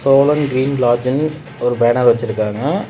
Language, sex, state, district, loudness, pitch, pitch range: Tamil, male, Tamil Nadu, Namakkal, -16 LUFS, 125 Hz, 120-140 Hz